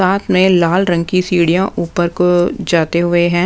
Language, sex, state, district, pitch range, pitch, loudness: Hindi, female, Punjab, Pathankot, 170-185 Hz, 175 Hz, -14 LUFS